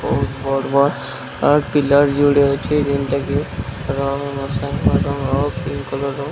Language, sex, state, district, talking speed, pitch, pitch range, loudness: Odia, male, Odisha, Sambalpur, 65 wpm, 140 Hz, 135-140 Hz, -18 LUFS